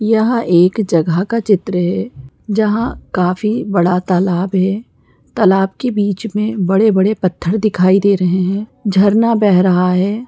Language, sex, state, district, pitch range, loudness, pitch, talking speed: Hindi, female, Chhattisgarh, Bastar, 180-215 Hz, -14 LUFS, 195 Hz, 145 wpm